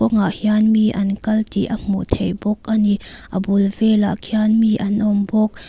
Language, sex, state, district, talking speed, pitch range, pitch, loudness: Mizo, female, Mizoram, Aizawl, 210 wpm, 200-215 Hz, 210 Hz, -18 LUFS